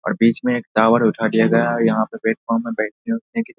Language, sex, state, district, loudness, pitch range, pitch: Hindi, male, Bihar, Saharsa, -18 LUFS, 110-120 Hz, 115 Hz